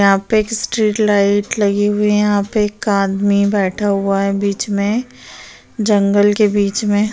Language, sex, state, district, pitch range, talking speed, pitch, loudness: Hindi, female, Maharashtra, Chandrapur, 200-210 Hz, 175 wpm, 205 Hz, -15 LUFS